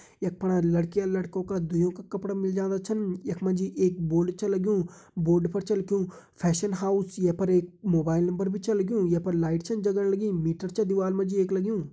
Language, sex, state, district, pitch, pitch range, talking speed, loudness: Hindi, male, Uttarakhand, Tehri Garhwal, 190 Hz, 175-200 Hz, 215 wpm, -27 LUFS